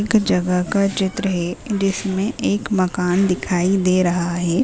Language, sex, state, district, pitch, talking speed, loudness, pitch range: Hindi, female, Bihar, Purnia, 190 Hz, 155 wpm, -19 LUFS, 180-200 Hz